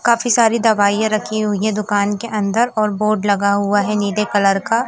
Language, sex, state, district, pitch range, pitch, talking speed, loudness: Hindi, female, Madhya Pradesh, Umaria, 205-225 Hz, 210 Hz, 210 wpm, -16 LUFS